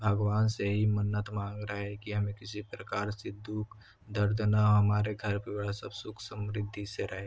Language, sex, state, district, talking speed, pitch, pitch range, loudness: Hindi, male, Chhattisgarh, Kabirdham, 200 wpm, 105 Hz, 100-105 Hz, -32 LUFS